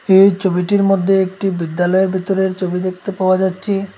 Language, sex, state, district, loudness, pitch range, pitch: Bengali, male, Assam, Hailakandi, -16 LUFS, 185-195 Hz, 190 Hz